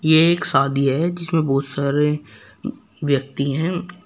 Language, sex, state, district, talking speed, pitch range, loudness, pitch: Hindi, female, Uttar Pradesh, Shamli, 135 wpm, 140-170 Hz, -19 LUFS, 150 Hz